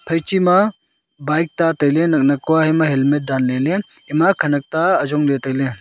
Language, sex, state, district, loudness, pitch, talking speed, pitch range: Wancho, male, Arunachal Pradesh, Longding, -17 LUFS, 150 Hz, 135 wpm, 140-165 Hz